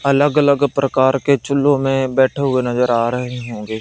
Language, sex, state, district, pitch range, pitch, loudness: Hindi, male, Punjab, Fazilka, 125-140 Hz, 135 Hz, -16 LUFS